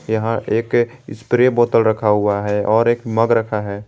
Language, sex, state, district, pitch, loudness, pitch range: Hindi, male, Jharkhand, Garhwa, 110 Hz, -17 LUFS, 105-120 Hz